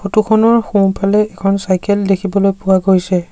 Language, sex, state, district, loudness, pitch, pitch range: Assamese, male, Assam, Sonitpur, -14 LUFS, 195 Hz, 190-205 Hz